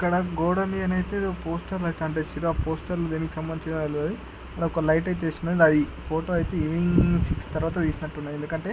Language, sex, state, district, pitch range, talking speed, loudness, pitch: Telugu, male, Andhra Pradesh, Chittoor, 155-175 Hz, 145 wpm, -26 LUFS, 165 Hz